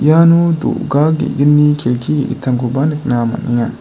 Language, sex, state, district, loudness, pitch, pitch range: Garo, male, Meghalaya, West Garo Hills, -14 LUFS, 145 Hz, 125-150 Hz